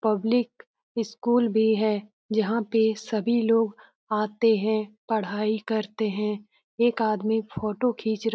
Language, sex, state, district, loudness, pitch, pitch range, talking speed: Hindi, female, Bihar, Jamui, -25 LUFS, 220 Hz, 215-230 Hz, 135 wpm